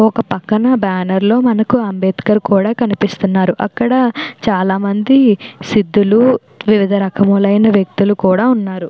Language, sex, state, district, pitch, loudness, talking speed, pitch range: Telugu, female, Andhra Pradesh, Chittoor, 205 Hz, -13 LUFS, 110 wpm, 195-230 Hz